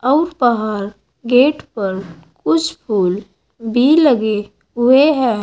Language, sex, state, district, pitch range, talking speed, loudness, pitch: Hindi, female, Uttar Pradesh, Saharanpur, 195-255 Hz, 110 wpm, -15 LUFS, 225 Hz